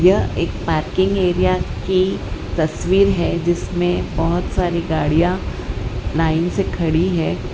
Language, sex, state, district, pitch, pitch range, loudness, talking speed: Hindi, female, Gujarat, Valsad, 170 Hz, 125-185 Hz, -19 LUFS, 120 wpm